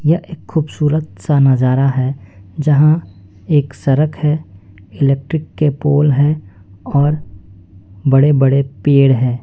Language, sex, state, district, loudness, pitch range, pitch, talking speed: Hindi, male, West Bengal, Alipurduar, -15 LUFS, 100-150 Hz, 140 Hz, 120 wpm